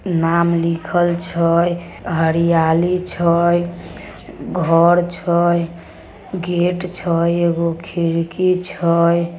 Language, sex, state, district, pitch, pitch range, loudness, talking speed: Magahi, female, Bihar, Samastipur, 170 Hz, 170-175 Hz, -17 LUFS, 75 wpm